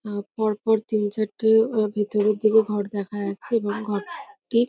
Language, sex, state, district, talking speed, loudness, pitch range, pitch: Bengali, female, West Bengal, North 24 Parganas, 190 wpm, -23 LUFS, 205-220 Hz, 215 Hz